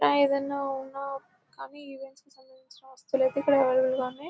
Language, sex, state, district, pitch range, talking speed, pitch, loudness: Telugu, female, Telangana, Nalgonda, 260-275 Hz, 155 wpm, 270 Hz, -27 LUFS